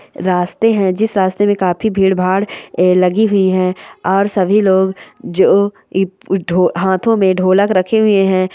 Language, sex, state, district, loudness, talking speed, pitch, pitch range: Hindi, female, Bihar, Darbhanga, -14 LUFS, 145 wpm, 190 Hz, 185-200 Hz